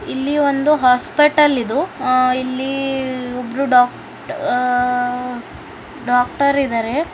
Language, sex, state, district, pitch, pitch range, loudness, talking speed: Kannada, male, Karnataka, Bijapur, 255 Hz, 250-280 Hz, -17 LUFS, 75 wpm